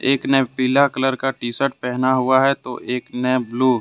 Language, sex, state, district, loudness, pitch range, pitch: Hindi, male, Jharkhand, Deoghar, -19 LUFS, 125-135 Hz, 130 Hz